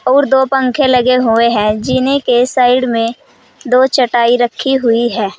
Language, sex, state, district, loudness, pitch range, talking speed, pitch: Hindi, female, Uttar Pradesh, Saharanpur, -12 LUFS, 235-265 Hz, 165 wpm, 250 Hz